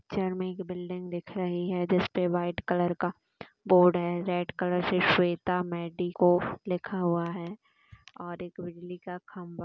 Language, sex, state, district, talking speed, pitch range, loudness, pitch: Hindi, female, Chhattisgarh, Raigarh, 160 wpm, 175-185 Hz, -29 LUFS, 180 Hz